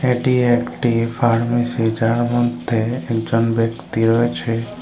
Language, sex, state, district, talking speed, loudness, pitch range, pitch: Bengali, male, Tripura, Unakoti, 100 wpm, -18 LUFS, 115-120 Hz, 115 Hz